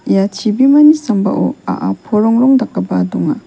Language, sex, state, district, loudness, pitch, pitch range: Garo, female, Meghalaya, West Garo Hills, -13 LUFS, 215 Hz, 195-260 Hz